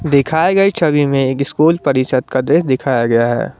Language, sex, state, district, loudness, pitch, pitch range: Hindi, male, Jharkhand, Garhwa, -14 LUFS, 140 Hz, 130-160 Hz